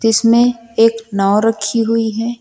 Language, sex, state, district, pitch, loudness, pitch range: Hindi, male, Uttar Pradesh, Lucknow, 225 Hz, -14 LUFS, 220-230 Hz